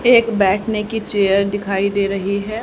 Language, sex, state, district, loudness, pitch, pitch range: Hindi, female, Haryana, Rohtak, -17 LUFS, 200 Hz, 195-220 Hz